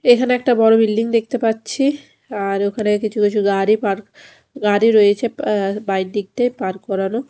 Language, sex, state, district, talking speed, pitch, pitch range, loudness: Bengali, female, Odisha, Khordha, 155 wpm, 215 Hz, 200-235 Hz, -17 LUFS